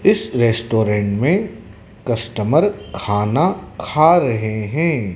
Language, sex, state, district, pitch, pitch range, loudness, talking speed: Hindi, male, Madhya Pradesh, Dhar, 115 Hz, 105-160 Hz, -18 LUFS, 95 wpm